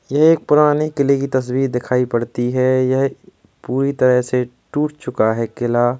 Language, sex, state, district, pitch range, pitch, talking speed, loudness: Hindi, male, Uttar Pradesh, Jalaun, 125-140 Hz, 130 Hz, 180 wpm, -17 LUFS